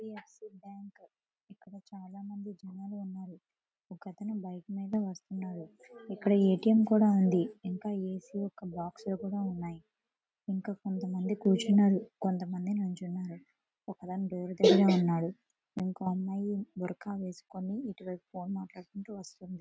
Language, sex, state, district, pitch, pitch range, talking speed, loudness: Telugu, female, Andhra Pradesh, Visakhapatnam, 190 Hz, 185-205 Hz, 140 wpm, -32 LUFS